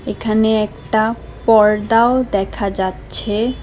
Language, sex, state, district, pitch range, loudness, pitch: Bengali, female, Assam, Hailakandi, 205-225 Hz, -16 LUFS, 215 Hz